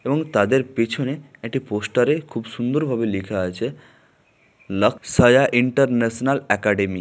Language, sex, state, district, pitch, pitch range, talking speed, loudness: Bengali, male, West Bengal, Malda, 120 Hz, 105-135 Hz, 130 wpm, -20 LUFS